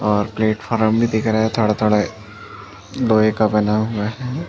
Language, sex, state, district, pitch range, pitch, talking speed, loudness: Hindi, male, Chhattisgarh, Bastar, 105-110 Hz, 110 Hz, 145 wpm, -18 LUFS